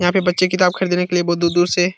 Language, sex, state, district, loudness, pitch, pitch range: Hindi, male, Bihar, Jahanabad, -17 LUFS, 180 Hz, 175-185 Hz